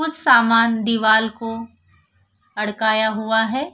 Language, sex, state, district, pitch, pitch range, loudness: Hindi, female, Bihar, Vaishali, 225 Hz, 210-230 Hz, -17 LUFS